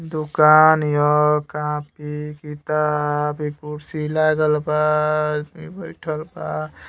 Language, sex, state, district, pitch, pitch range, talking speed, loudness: Bhojpuri, male, Uttar Pradesh, Gorakhpur, 150 Hz, 150-155 Hz, 95 wpm, -19 LUFS